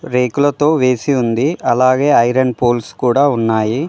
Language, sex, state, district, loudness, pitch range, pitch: Telugu, male, Telangana, Mahabubabad, -14 LUFS, 120-135 Hz, 125 Hz